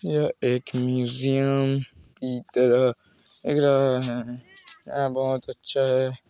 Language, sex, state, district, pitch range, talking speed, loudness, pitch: Hindi, male, Chhattisgarh, Kabirdham, 125-135 Hz, 115 wpm, -24 LUFS, 130 Hz